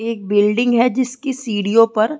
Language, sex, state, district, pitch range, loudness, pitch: Hindi, female, Bihar, Saran, 215-245 Hz, -17 LUFS, 230 Hz